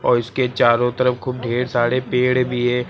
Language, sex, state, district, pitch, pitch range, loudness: Hindi, male, Uttar Pradesh, Lucknow, 125 Hz, 120-125 Hz, -19 LUFS